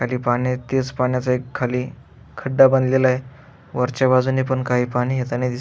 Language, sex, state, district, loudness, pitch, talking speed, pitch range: Marathi, male, Maharashtra, Aurangabad, -20 LUFS, 130 Hz, 160 wpm, 125-130 Hz